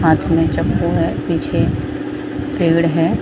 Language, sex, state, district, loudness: Hindi, female, Jharkhand, Sahebganj, -17 LUFS